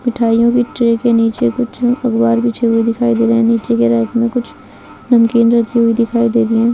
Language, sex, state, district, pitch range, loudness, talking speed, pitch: Hindi, female, Bihar, Kishanganj, 230-240 Hz, -13 LUFS, 225 wpm, 235 Hz